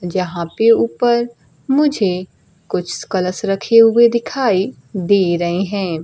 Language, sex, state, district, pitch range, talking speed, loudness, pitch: Hindi, female, Bihar, Kaimur, 175-230 Hz, 120 wpm, -16 LUFS, 195 Hz